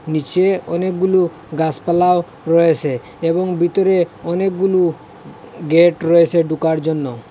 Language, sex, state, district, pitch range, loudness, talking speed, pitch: Bengali, male, Assam, Hailakandi, 160-180 Hz, -16 LUFS, 90 wpm, 170 Hz